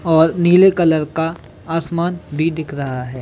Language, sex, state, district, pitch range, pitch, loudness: Hindi, male, Chhattisgarh, Bilaspur, 150-170 Hz, 160 Hz, -17 LUFS